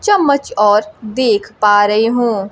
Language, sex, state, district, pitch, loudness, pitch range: Hindi, female, Bihar, Kaimur, 220 Hz, -13 LUFS, 210-260 Hz